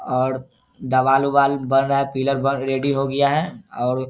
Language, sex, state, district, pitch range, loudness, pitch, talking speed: Hindi, male, Bihar, Saharsa, 130-140 Hz, -20 LUFS, 135 Hz, 190 wpm